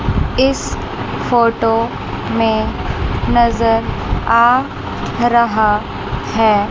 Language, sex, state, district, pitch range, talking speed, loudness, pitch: Hindi, female, Chandigarh, Chandigarh, 215-235 Hz, 65 wpm, -16 LUFS, 225 Hz